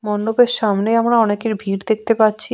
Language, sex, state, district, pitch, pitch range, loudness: Bengali, female, West Bengal, Jhargram, 220 Hz, 210-230 Hz, -17 LUFS